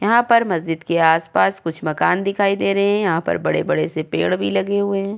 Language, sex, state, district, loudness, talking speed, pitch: Hindi, female, Uttar Pradesh, Jyotiba Phule Nagar, -18 LUFS, 230 wpm, 170 Hz